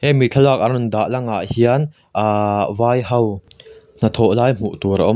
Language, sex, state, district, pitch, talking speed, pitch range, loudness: Mizo, male, Mizoram, Aizawl, 120 Hz, 220 wpm, 105-130 Hz, -17 LUFS